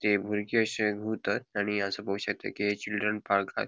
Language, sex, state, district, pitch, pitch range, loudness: Konkani, male, Goa, North and South Goa, 105 Hz, 100-105 Hz, -30 LUFS